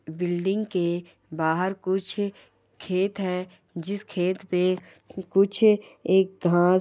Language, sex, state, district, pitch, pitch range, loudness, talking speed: Hindi, female, Bihar, Bhagalpur, 185 Hz, 175-195 Hz, -25 LUFS, 105 wpm